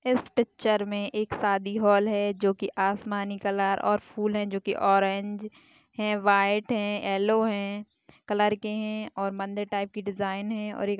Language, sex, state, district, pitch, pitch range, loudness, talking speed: Hindi, female, Chhattisgarh, Bastar, 205 Hz, 200-215 Hz, -27 LUFS, 180 wpm